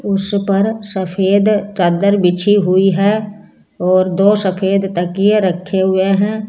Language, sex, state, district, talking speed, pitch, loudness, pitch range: Hindi, female, Rajasthan, Jaipur, 120 wpm, 195 Hz, -14 LUFS, 190-205 Hz